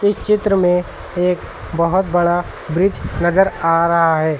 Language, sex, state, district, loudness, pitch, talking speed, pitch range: Hindi, male, Uttar Pradesh, Lucknow, -17 LUFS, 175 Hz, 150 wpm, 170-195 Hz